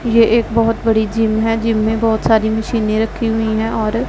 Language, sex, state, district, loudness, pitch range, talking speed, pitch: Hindi, female, Punjab, Pathankot, -15 LUFS, 220-230 Hz, 220 wpm, 225 Hz